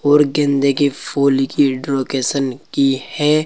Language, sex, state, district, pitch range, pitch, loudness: Hindi, male, Uttar Pradesh, Saharanpur, 135-145 Hz, 140 Hz, -17 LUFS